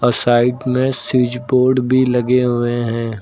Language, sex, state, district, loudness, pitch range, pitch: Hindi, male, Uttar Pradesh, Lucknow, -16 LUFS, 120-130 Hz, 125 Hz